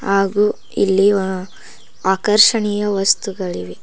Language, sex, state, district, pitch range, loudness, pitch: Kannada, female, Karnataka, Koppal, 190-205 Hz, -16 LUFS, 195 Hz